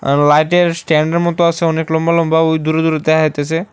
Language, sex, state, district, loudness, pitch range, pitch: Bengali, male, Tripura, West Tripura, -14 LUFS, 155-170 Hz, 160 Hz